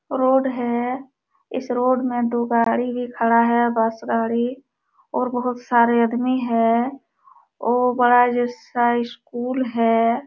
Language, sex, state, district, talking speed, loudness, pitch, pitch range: Hindi, female, Uttar Pradesh, Jalaun, 130 wpm, -20 LUFS, 245 Hz, 235-250 Hz